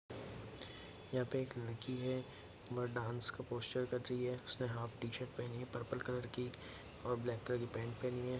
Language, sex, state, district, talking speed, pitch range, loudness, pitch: Hindi, male, Bihar, Jamui, 200 wpm, 120-125 Hz, -43 LUFS, 125 Hz